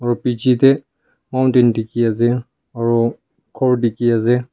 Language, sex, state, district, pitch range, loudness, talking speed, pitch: Nagamese, male, Nagaland, Kohima, 115-130 Hz, -17 LUFS, 105 wpm, 120 Hz